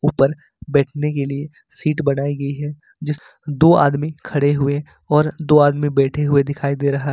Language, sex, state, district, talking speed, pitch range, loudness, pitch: Hindi, male, Jharkhand, Ranchi, 185 wpm, 140-150 Hz, -18 LUFS, 145 Hz